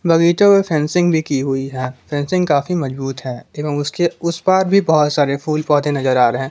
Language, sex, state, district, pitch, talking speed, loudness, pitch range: Hindi, male, Jharkhand, Palamu, 150 Hz, 210 wpm, -17 LUFS, 135-170 Hz